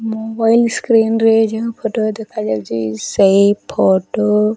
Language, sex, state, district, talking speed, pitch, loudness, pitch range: Odia, female, Odisha, Nuapada, 120 wpm, 220 Hz, -15 LUFS, 200-225 Hz